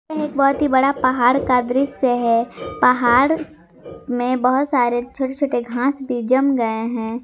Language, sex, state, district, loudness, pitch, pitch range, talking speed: Hindi, female, Jharkhand, Garhwa, -18 LUFS, 255 Hz, 240-275 Hz, 165 wpm